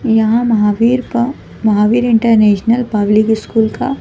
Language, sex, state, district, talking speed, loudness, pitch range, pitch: Hindi, female, Madhya Pradesh, Bhopal, 120 wpm, -13 LUFS, 215-235 Hz, 225 Hz